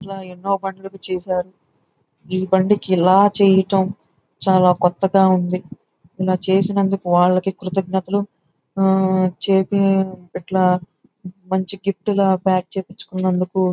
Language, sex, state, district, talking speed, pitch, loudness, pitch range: Telugu, male, Andhra Pradesh, Guntur, 100 wpm, 190 Hz, -18 LUFS, 185-195 Hz